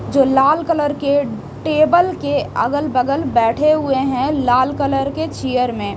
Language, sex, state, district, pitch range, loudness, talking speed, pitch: Hindi, female, Chhattisgarh, Raipur, 260-300 Hz, -17 LUFS, 160 wpm, 280 Hz